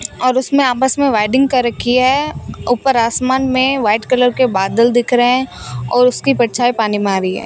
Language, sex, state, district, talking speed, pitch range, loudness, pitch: Hindi, female, Rajasthan, Bikaner, 210 wpm, 230-260 Hz, -14 LUFS, 250 Hz